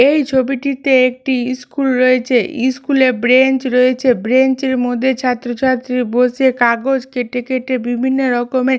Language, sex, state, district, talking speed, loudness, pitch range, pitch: Bengali, female, West Bengal, Malda, 135 wpm, -15 LUFS, 250-265 Hz, 255 Hz